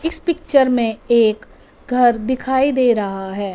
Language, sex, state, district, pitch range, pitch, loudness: Hindi, female, Punjab, Fazilka, 220-265 Hz, 245 Hz, -17 LUFS